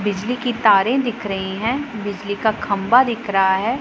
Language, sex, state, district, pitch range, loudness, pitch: Hindi, female, Punjab, Pathankot, 200-245 Hz, -19 LUFS, 215 Hz